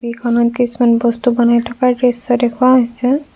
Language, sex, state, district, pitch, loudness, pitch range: Assamese, female, Assam, Kamrup Metropolitan, 240 Hz, -14 LUFS, 235-250 Hz